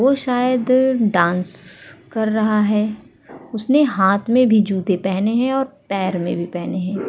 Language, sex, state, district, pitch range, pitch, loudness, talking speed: Hindi, female, Uttar Pradesh, Etah, 190-250 Hz, 215 Hz, -18 LUFS, 160 wpm